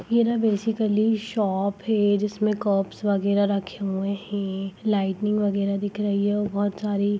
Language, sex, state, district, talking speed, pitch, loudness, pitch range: Hindi, female, Chhattisgarh, Sarguja, 150 wpm, 205 Hz, -24 LUFS, 200-210 Hz